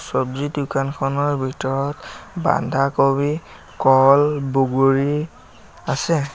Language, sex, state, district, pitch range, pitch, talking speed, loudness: Assamese, male, Assam, Sonitpur, 135-145 Hz, 140 Hz, 75 wpm, -19 LUFS